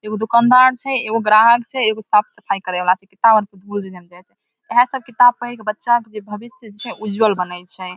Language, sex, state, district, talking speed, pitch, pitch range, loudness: Maithili, female, Bihar, Samastipur, 225 wpm, 215 Hz, 195-240 Hz, -16 LUFS